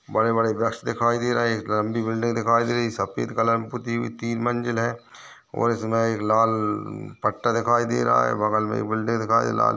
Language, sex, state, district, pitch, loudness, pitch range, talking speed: Hindi, male, Chhattisgarh, Balrampur, 115 Hz, -23 LUFS, 110-115 Hz, 215 wpm